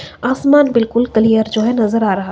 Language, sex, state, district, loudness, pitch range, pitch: Hindi, female, Himachal Pradesh, Shimla, -14 LUFS, 220-245 Hz, 225 Hz